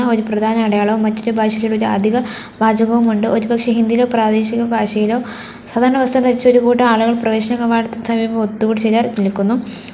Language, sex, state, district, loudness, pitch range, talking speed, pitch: Malayalam, female, Kerala, Kollam, -15 LUFS, 220-235 Hz, 145 wpm, 230 Hz